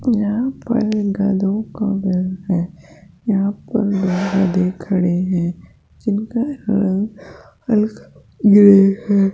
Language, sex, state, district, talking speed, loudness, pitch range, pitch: Hindi, female, Rajasthan, Jaipur, 110 wpm, -17 LUFS, 185-210 Hz, 200 Hz